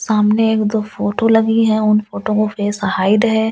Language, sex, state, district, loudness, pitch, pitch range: Hindi, female, Delhi, New Delhi, -15 LUFS, 215 Hz, 210-220 Hz